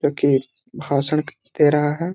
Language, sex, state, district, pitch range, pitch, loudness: Hindi, male, Bihar, Jahanabad, 140-150 Hz, 150 Hz, -20 LUFS